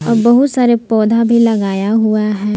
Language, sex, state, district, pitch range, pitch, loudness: Hindi, female, Jharkhand, Palamu, 210-235 Hz, 225 Hz, -12 LUFS